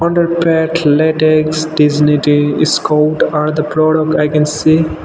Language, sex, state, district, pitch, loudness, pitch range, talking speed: English, male, Nagaland, Dimapur, 155 Hz, -12 LUFS, 150-160 Hz, 120 wpm